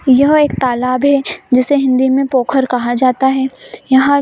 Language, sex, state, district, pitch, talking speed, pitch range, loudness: Hindi, female, Bihar, East Champaran, 265 Hz, 170 wpm, 255-275 Hz, -13 LUFS